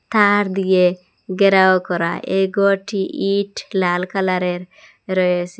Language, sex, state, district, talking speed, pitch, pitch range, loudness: Bengali, female, Assam, Hailakandi, 120 wpm, 190 Hz, 180-195 Hz, -18 LUFS